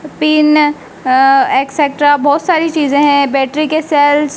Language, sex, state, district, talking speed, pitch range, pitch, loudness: Hindi, female, Madhya Pradesh, Dhar, 150 wpm, 285-305 Hz, 295 Hz, -11 LUFS